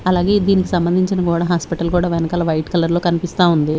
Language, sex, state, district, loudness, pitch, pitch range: Telugu, female, Andhra Pradesh, Sri Satya Sai, -17 LUFS, 175 Hz, 170-180 Hz